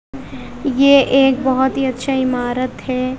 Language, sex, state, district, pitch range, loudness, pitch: Hindi, female, Bihar, West Champaran, 255-270 Hz, -16 LUFS, 265 Hz